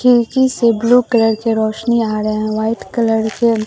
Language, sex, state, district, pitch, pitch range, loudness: Hindi, male, Bihar, Katihar, 230 Hz, 220-240 Hz, -15 LUFS